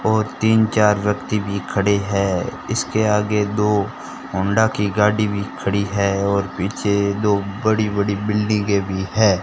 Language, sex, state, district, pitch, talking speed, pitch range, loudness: Hindi, male, Rajasthan, Bikaner, 100 Hz, 150 wpm, 100-105 Hz, -19 LUFS